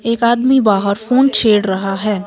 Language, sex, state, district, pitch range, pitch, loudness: Hindi, female, Himachal Pradesh, Shimla, 200-245 Hz, 215 Hz, -13 LUFS